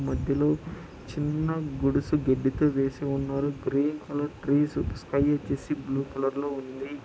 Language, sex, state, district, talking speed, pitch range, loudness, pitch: Telugu, male, Andhra Pradesh, Anantapur, 130 wpm, 135-150 Hz, -28 LUFS, 140 Hz